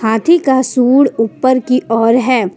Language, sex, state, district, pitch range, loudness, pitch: Hindi, female, Jharkhand, Ranchi, 225-260 Hz, -12 LUFS, 255 Hz